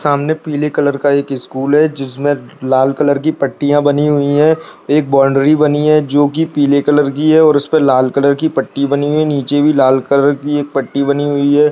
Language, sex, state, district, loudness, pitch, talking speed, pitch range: Hindi, male, Rajasthan, Nagaur, -13 LUFS, 145 Hz, 220 wpm, 140-150 Hz